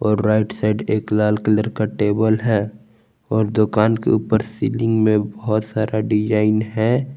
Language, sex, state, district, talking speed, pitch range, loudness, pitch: Hindi, male, Jharkhand, Palamu, 160 wpm, 105-110 Hz, -19 LUFS, 110 Hz